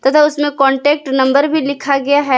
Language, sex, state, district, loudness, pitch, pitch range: Hindi, female, Jharkhand, Palamu, -13 LUFS, 280 Hz, 270-290 Hz